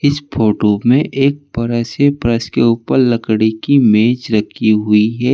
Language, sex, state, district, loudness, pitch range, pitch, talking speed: Hindi, male, Uttar Pradesh, Saharanpur, -14 LUFS, 110-135 Hz, 115 Hz, 155 wpm